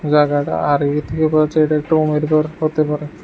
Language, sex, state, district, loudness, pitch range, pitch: Bengali, male, Tripura, West Tripura, -17 LUFS, 150-155 Hz, 150 Hz